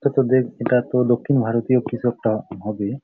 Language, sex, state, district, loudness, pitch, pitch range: Bengali, male, West Bengal, Jalpaiguri, -20 LUFS, 120 Hz, 115-130 Hz